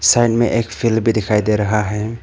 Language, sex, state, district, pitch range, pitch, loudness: Hindi, male, Arunachal Pradesh, Papum Pare, 105-115 Hz, 110 Hz, -16 LUFS